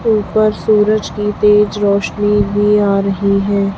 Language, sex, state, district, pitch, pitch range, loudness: Hindi, female, Chhattisgarh, Raipur, 205 Hz, 200-210 Hz, -13 LUFS